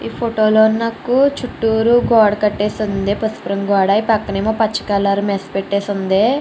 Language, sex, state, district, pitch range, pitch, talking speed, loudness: Telugu, female, Andhra Pradesh, Chittoor, 200-225 Hz, 210 Hz, 180 wpm, -16 LUFS